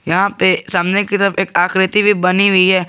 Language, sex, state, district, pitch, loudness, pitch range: Hindi, male, Jharkhand, Garhwa, 190 Hz, -13 LUFS, 185-200 Hz